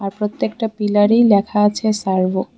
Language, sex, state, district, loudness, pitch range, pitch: Bengali, female, Tripura, West Tripura, -16 LUFS, 195-220 Hz, 210 Hz